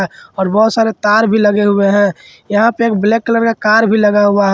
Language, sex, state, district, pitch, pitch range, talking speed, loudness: Hindi, male, Jharkhand, Ranchi, 210 Hz, 205-225 Hz, 250 wpm, -12 LUFS